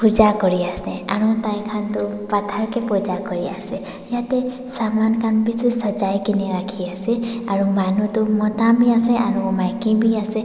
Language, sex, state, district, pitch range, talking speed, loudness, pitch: Nagamese, female, Nagaland, Dimapur, 195-230 Hz, 150 wpm, -20 LUFS, 215 Hz